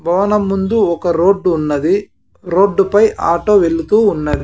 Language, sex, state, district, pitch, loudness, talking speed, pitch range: Telugu, male, Andhra Pradesh, Sri Satya Sai, 190 Hz, -14 LUFS, 135 wpm, 170-210 Hz